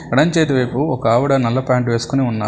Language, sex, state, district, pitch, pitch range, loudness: Telugu, male, Telangana, Hyderabad, 130 Hz, 115-140 Hz, -16 LUFS